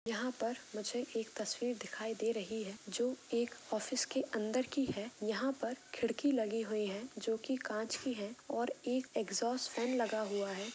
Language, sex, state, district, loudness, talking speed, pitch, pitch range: Hindi, female, Jharkhand, Jamtara, -38 LUFS, 190 wpm, 230 Hz, 215-250 Hz